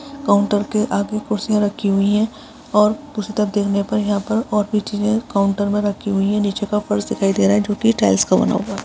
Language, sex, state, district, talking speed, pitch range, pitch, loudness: Hindi, female, Chhattisgarh, Balrampur, 245 wpm, 200-215 Hz, 210 Hz, -18 LUFS